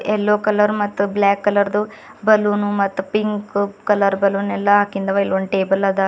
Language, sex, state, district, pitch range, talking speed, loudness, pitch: Kannada, female, Karnataka, Bidar, 200-210 Hz, 175 wpm, -18 LUFS, 205 Hz